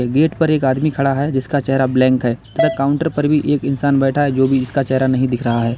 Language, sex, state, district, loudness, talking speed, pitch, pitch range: Hindi, male, Uttar Pradesh, Lalitpur, -16 LUFS, 270 wpm, 135 Hz, 130-145 Hz